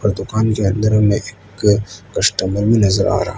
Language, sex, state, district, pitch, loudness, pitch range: Hindi, male, Gujarat, Valsad, 105 Hz, -16 LUFS, 100-110 Hz